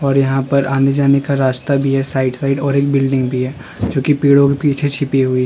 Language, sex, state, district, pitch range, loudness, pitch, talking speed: Hindi, male, Uttar Pradesh, Lalitpur, 135-140 Hz, -15 LUFS, 135 Hz, 265 wpm